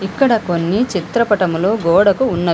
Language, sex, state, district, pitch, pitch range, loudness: Telugu, female, Telangana, Hyderabad, 195 Hz, 175-230 Hz, -15 LUFS